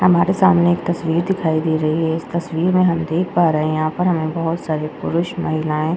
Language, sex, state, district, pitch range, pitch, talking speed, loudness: Hindi, female, Uttar Pradesh, Jyotiba Phule Nagar, 160-175 Hz, 165 Hz, 240 wpm, -18 LUFS